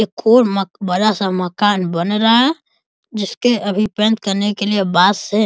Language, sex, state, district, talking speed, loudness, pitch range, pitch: Hindi, male, Bihar, East Champaran, 185 wpm, -16 LUFS, 195-225 Hz, 210 Hz